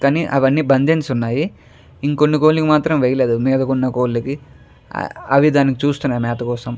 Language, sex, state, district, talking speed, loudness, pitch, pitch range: Telugu, male, Andhra Pradesh, Chittoor, 140 wpm, -17 LUFS, 135 Hz, 125-150 Hz